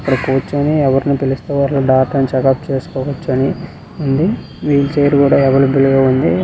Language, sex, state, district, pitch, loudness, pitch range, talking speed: Telugu, male, Karnataka, Belgaum, 135 Hz, -14 LUFS, 135-140 Hz, 140 wpm